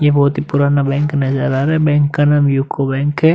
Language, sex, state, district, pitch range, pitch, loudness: Hindi, male, Uttar Pradesh, Muzaffarnagar, 140-145 Hz, 145 Hz, -15 LUFS